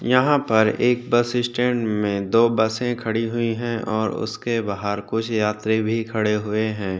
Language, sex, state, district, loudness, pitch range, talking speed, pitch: Hindi, male, Uttarakhand, Tehri Garhwal, -21 LUFS, 110-120 Hz, 170 wpm, 110 Hz